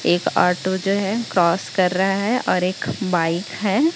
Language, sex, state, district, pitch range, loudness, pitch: Hindi, male, Chhattisgarh, Raipur, 180-200 Hz, -20 LUFS, 190 Hz